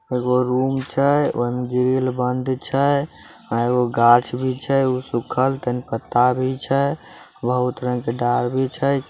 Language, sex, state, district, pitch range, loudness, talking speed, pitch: Maithili, male, Bihar, Samastipur, 125-130 Hz, -20 LUFS, 165 wpm, 125 Hz